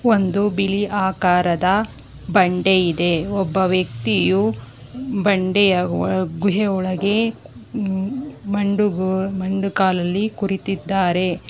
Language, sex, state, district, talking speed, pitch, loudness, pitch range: Kannada, female, Karnataka, Bangalore, 80 wpm, 190 Hz, -19 LUFS, 180-200 Hz